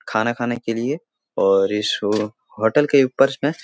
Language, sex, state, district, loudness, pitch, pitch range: Hindi, male, Bihar, Jahanabad, -20 LUFS, 115 Hz, 105-135 Hz